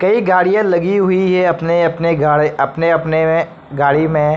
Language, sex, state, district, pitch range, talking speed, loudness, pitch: Hindi, male, Bihar, Patna, 155-180 Hz, 150 wpm, -14 LUFS, 165 Hz